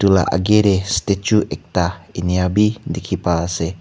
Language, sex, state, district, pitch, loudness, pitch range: Nagamese, male, Nagaland, Kohima, 95 Hz, -18 LUFS, 90-105 Hz